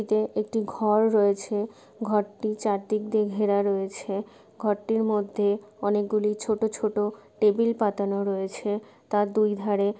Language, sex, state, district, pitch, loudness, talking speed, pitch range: Bengali, female, West Bengal, Malda, 210 Hz, -26 LUFS, 140 wpm, 205-215 Hz